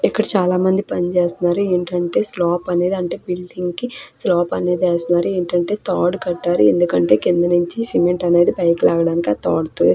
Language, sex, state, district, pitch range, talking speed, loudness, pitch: Telugu, female, Andhra Pradesh, Krishna, 175-180 Hz, 155 wpm, -18 LUFS, 175 Hz